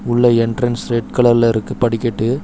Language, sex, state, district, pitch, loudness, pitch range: Tamil, male, Tamil Nadu, Chennai, 120 Hz, -16 LUFS, 115-120 Hz